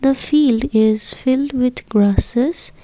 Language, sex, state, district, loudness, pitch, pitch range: English, female, Assam, Kamrup Metropolitan, -16 LUFS, 250 Hz, 220-270 Hz